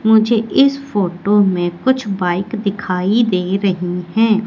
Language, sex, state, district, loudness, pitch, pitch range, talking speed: Hindi, female, Madhya Pradesh, Katni, -16 LUFS, 200 Hz, 180-225 Hz, 135 wpm